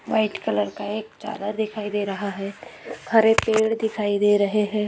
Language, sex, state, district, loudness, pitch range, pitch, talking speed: Hindi, female, Maharashtra, Aurangabad, -23 LUFS, 205-220 Hz, 210 Hz, 185 wpm